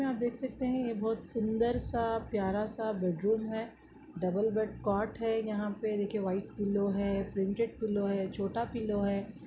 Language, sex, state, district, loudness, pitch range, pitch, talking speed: Hindi, female, Chhattisgarh, Bastar, -33 LUFS, 200-225 Hz, 215 Hz, 185 wpm